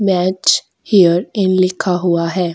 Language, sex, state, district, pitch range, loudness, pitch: Hindi, female, Chhattisgarh, Korba, 175-190 Hz, -15 LUFS, 185 Hz